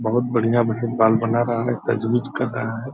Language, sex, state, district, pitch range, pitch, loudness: Hindi, male, Bihar, Purnia, 115-120 Hz, 115 Hz, -21 LUFS